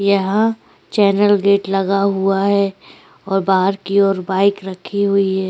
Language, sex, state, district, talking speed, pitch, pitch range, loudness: Hindi, female, Chhattisgarh, Korba, 165 wpm, 195 Hz, 195-200 Hz, -16 LUFS